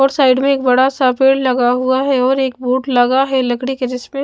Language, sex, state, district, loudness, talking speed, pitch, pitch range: Hindi, female, Maharashtra, Mumbai Suburban, -14 LUFS, 255 wpm, 260 Hz, 250-270 Hz